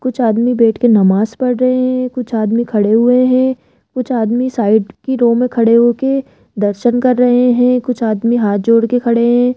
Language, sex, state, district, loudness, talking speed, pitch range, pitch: Hindi, female, Rajasthan, Jaipur, -13 LUFS, 200 wpm, 225-255 Hz, 240 Hz